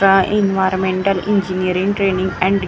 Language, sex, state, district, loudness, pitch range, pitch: Marathi, female, Maharashtra, Gondia, -17 LUFS, 185-195 Hz, 190 Hz